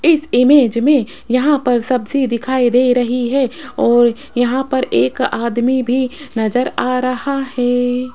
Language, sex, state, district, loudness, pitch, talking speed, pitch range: Hindi, female, Rajasthan, Jaipur, -15 LUFS, 250 Hz, 145 wpm, 245-265 Hz